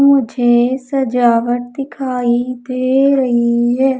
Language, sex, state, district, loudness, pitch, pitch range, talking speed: Hindi, female, Madhya Pradesh, Umaria, -15 LUFS, 255 Hz, 240-265 Hz, 90 wpm